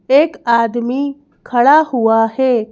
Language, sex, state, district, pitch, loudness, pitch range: Hindi, female, Madhya Pradesh, Bhopal, 245 Hz, -14 LUFS, 235-275 Hz